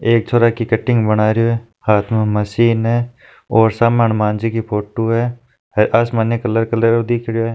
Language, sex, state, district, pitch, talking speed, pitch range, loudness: Marwari, male, Rajasthan, Nagaur, 115 Hz, 175 wpm, 110-115 Hz, -16 LUFS